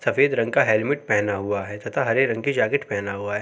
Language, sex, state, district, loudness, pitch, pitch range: Hindi, male, Uttar Pradesh, Jalaun, -22 LUFS, 105 Hz, 100-125 Hz